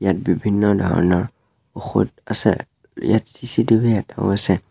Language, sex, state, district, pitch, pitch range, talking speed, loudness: Assamese, male, Assam, Sonitpur, 105 Hz, 95-115 Hz, 115 wpm, -19 LUFS